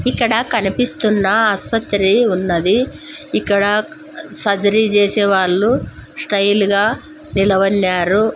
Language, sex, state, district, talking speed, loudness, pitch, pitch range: Telugu, female, Andhra Pradesh, Sri Satya Sai, 85 wpm, -15 LUFS, 205 Hz, 200-230 Hz